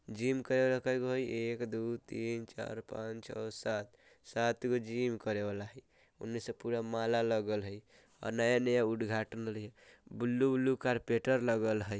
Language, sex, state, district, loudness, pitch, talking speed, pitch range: Bajjika, male, Bihar, Vaishali, -35 LUFS, 115 Hz, 170 wpm, 110-125 Hz